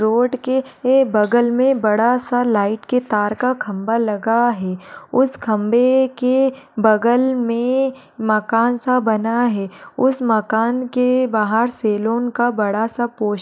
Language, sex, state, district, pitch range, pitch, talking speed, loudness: Hindi, female, Uttar Pradesh, Budaun, 215-255 Hz, 235 Hz, 135 wpm, -18 LUFS